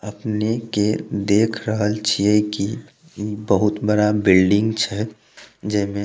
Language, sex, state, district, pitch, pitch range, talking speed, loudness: Maithili, male, Bihar, Samastipur, 105 Hz, 105-110 Hz, 140 wpm, -20 LUFS